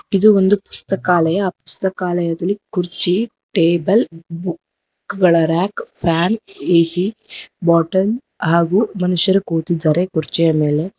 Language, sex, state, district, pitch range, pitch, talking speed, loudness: Kannada, female, Karnataka, Bangalore, 165-195 Hz, 180 Hz, 95 wpm, -17 LUFS